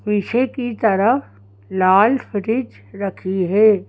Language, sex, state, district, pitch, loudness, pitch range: Hindi, female, Madhya Pradesh, Bhopal, 205 Hz, -18 LUFS, 190-230 Hz